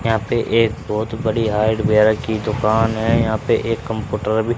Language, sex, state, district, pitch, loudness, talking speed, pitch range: Hindi, male, Haryana, Rohtak, 110 Hz, -18 LUFS, 185 wpm, 110-115 Hz